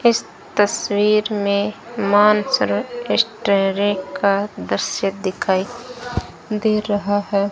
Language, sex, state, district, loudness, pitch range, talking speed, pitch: Hindi, female, Rajasthan, Bikaner, -19 LUFS, 200-215 Hz, 90 wpm, 205 Hz